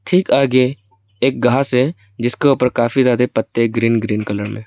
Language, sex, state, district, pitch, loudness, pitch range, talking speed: Hindi, male, Arunachal Pradesh, Lower Dibang Valley, 120 Hz, -16 LUFS, 110-130 Hz, 190 wpm